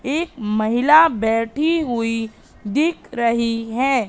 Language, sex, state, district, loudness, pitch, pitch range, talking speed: Hindi, female, Madhya Pradesh, Katni, -19 LUFS, 235 Hz, 225-295 Hz, 105 wpm